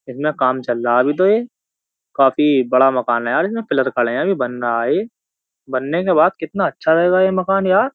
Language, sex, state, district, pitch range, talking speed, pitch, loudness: Hindi, male, Uttar Pradesh, Jyotiba Phule Nagar, 130-190 Hz, 235 wpm, 150 Hz, -17 LUFS